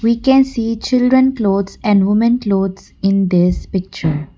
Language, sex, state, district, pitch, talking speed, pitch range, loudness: English, female, Assam, Kamrup Metropolitan, 205 Hz, 150 wpm, 195-235 Hz, -15 LUFS